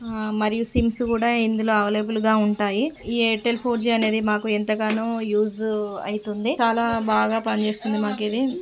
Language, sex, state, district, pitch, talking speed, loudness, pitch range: Telugu, female, Telangana, Nalgonda, 220 Hz, 160 wpm, -22 LUFS, 215-230 Hz